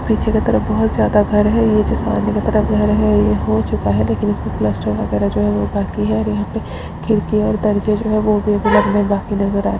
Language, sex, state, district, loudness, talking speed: Hindi, female, Uttarakhand, Uttarkashi, -16 LUFS, 250 wpm